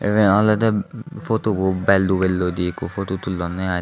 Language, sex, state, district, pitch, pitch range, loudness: Chakma, male, Tripura, Unakoti, 95 Hz, 90-105 Hz, -20 LUFS